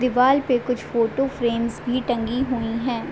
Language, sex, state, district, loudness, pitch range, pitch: Hindi, female, Uttar Pradesh, Deoria, -22 LUFS, 235-255 Hz, 245 Hz